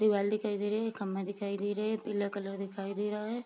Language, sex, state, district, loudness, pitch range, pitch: Hindi, female, Bihar, Sitamarhi, -34 LUFS, 200-215 Hz, 205 Hz